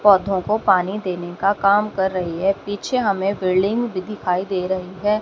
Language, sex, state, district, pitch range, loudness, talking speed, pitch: Hindi, female, Haryana, Rohtak, 185-205 Hz, -20 LUFS, 195 wpm, 195 Hz